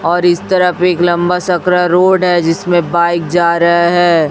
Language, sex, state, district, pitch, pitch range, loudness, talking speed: Hindi, female, Chhattisgarh, Raipur, 175 Hz, 170-180 Hz, -11 LUFS, 180 wpm